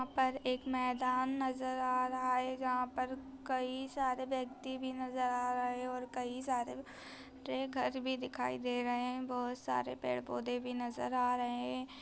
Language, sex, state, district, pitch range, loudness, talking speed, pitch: Hindi, female, Bihar, East Champaran, 245-260 Hz, -37 LUFS, 175 wpm, 255 Hz